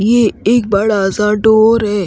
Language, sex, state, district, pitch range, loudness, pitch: Hindi, female, Haryana, Rohtak, 205-225 Hz, -12 LUFS, 215 Hz